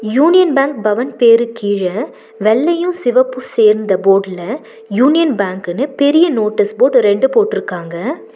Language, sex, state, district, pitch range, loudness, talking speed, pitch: Tamil, female, Tamil Nadu, Nilgiris, 210-330 Hz, -13 LUFS, 115 wpm, 250 Hz